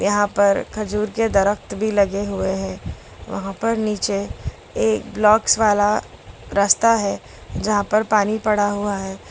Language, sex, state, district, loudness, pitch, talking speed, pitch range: Hindi, female, Gujarat, Valsad, -20 LUFS, 205 Hz, 150 wpm, 195-215 Hz